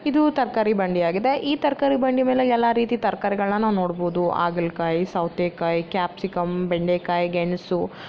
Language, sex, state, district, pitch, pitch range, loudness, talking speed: Kannada, female, Karnataka, Bellary, 185 Hz, 175-240 Hz, -22 LUFS, 150 wpm